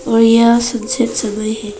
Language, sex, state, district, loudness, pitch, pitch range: Hindi, female, Arunachal Pradesh, Papum Pare, -14 LUFS, 230 Hz, 215-235 Hz